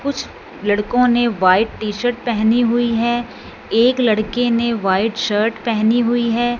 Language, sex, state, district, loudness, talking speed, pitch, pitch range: Hindi, female, Punjab, Fazilka, -17 LUFS, 155 wpm, 235 Hz, 215-240 Hz